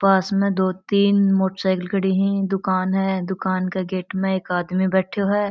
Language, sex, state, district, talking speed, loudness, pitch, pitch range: Marwari, female, Rajasthan, Churu, 185 wpm, -21 LUFS, 190 Hz, 185-195 Hz